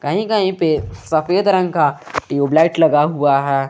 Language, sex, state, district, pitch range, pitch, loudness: Hindi, male, Jharkhand, Garhwa, 140-180 Hz, 155 Hz, -16 LUFS